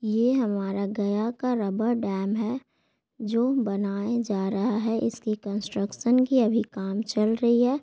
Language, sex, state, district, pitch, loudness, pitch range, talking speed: Hindi, female, Bihar, Gaya, 220 Hz, -26 LUFS, 205-235 Hz, 155 wpm